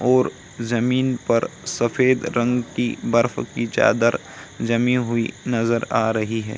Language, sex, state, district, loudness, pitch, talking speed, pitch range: Hindi, male, Bihar, Samastipur, -21 LUFS, 120 Hz, 135 wpm, 115-125 Hz